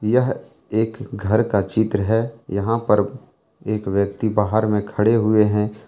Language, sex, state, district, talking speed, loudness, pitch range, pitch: Hindi, male, Jharkhand, Deoghar, 155 wpm, -20 LUFS, 105-115 Hz, 110 Hz